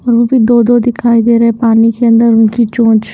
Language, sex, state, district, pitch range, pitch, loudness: Hindi, female, Haryana, Jhajjar, 230-235 Hz, 235 Hz, -9 LUFS